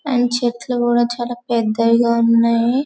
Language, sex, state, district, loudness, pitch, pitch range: Telugu, female, Telangana, Karimnagar, -17 LUFS, 240 Hz, 230-245 Hz